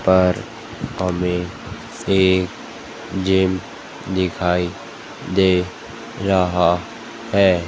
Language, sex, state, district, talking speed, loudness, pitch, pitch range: Hindi, female, Madhya Pradesh, Dhar, 60 wpm, -20 LUFS, 95 Hz, 90-100 Hz